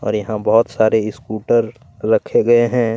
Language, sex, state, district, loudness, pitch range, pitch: Hindi, male, Chhattisgarh, Kabirdham, -16 LUFS, 110-120 Hz, 110 Hz